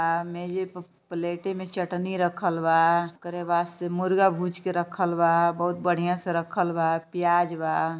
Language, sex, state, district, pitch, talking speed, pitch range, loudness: Bhojpuri, female, Uttar Pradesh, Gorakhpur, 175 Hz, 170 wpm, 170-180 Hz, -26 LUFS